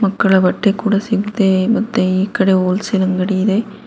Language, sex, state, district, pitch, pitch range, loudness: Kannada, female, Karnataka, Bangalore, 200 Hz, 190-210 Hz, -15 LUFS